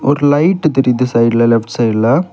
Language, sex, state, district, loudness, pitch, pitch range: Tamil, male, Tamil Nadu, Kanyakumari, -12 LUFS, 125 Hz, 115-145 Hz